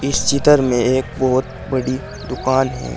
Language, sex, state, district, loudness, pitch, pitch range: Hindi, male, Uttar Pradesh, Saharanpur, -17 LUFS, 130 Hz, 125-135 Hz